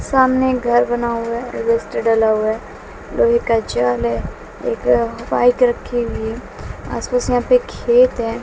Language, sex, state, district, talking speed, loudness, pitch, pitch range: Hindi, female, Bihar, West Champaran, 165 wpm, -17 LUFS, 235 Hz, 225-250 Hz